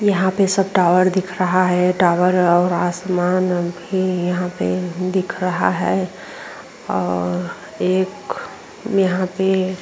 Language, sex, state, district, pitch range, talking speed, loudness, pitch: Hindi, female, Uttar Pradesh, Muzaffarnagar, 175-185 Hz, 130 wpm, -19 LUFS, 180 Hz